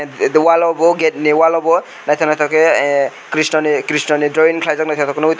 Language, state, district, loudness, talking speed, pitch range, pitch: Kokborok, Tripura, West Tripura, -14 LUFS, 210 wpm, 150-160 Hz, 155 Hz